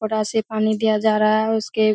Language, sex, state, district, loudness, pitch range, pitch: Hindi, female, Bihar, Purnia, -19 LUFS, 215-220 Hz, 215 Hz